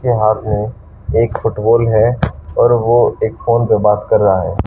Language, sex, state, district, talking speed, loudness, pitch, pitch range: Hindi, female, Haryana, Charkhi Dadri, 180 wpm, -14 LUFS, 110 Hz, 105-115 Hz